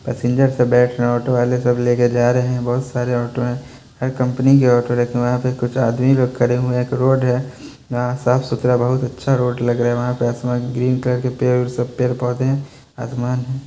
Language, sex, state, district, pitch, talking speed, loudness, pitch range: Hindi, male, Bihar, Muzaffarpur, 125 Hz, 245 wpm, -18 LUFS, 120-130 Hz